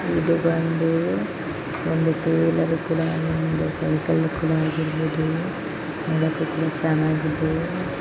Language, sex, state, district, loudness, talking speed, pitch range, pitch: Kannada, female, Karnataka, Bellary, -23 LUFS, 270 wpm, 160-165 Hz, 160 Hz